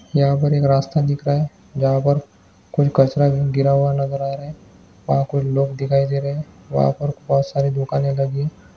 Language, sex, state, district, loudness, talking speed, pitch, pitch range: Hindi, male, Bihar, Purnia, -19 LUFS, 205 wpm, 140 Hz, 135-145 Hz